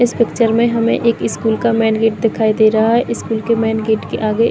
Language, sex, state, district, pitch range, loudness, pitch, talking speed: Hindi, female, Chhattisgarh, Bilaspur, 220-230 Hz, -15 LUFS, 225 Hz, 225 wpm